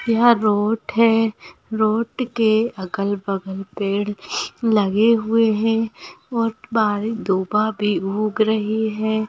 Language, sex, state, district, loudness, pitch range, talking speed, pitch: Hindi, female, Rajasthan, Nagaur, -20 LUFS, 205-225 Hz, 110 wpm, 220 Hz